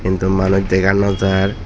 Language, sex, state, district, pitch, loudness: Chakma, male, Tripura, Dhalai, 95 Hz, -16 LUFS